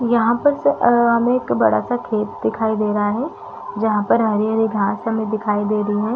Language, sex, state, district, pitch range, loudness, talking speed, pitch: Hindi, female, Chhattisgarh, Raigarh, 210-235 Hz, -18 LUFS, 205 wpm, 220 Hz